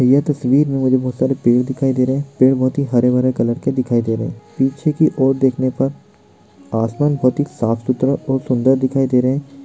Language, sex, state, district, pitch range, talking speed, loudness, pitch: Hindi, male, Chhattisgarh, Sarguja, 125-135 Hz, 235 wpm, -17 LUFS, 130 Hz